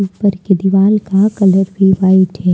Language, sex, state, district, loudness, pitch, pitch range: Hindi, female, Jharkhand, Deoghar, -12 LUFS, 195 Hz, 190-200 Hz